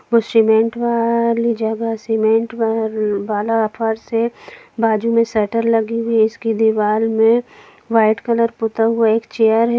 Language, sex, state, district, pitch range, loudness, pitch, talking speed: Hindi, female, Bihar, Jamui, 220-230 Hz, -17 LUFS, 225 Hz, 145 wpm